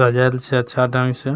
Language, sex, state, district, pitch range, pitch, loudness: Maithili, male, Bihar, Begusarai, 125-130 Hz, 125 Hz, -18 LUFS